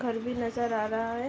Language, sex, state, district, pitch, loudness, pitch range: Hindi, female, Uttar Pradesh, Ghazipur, 235 Hz, -30 LUFS, 225-240 Hz